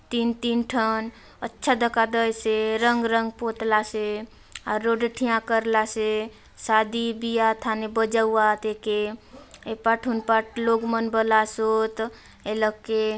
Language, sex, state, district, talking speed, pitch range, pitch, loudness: Halbi, female, Chhattisgarh, Bastar, 100 wpm, 220-230 Hz, 225 Hz, -24 LUFS